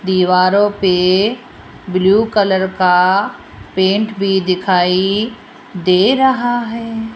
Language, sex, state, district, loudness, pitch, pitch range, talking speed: Hindi, female, Rajasthan, Jaipur, -14 LUFS, 195 Hz, 185-225 Hz, 90 wpm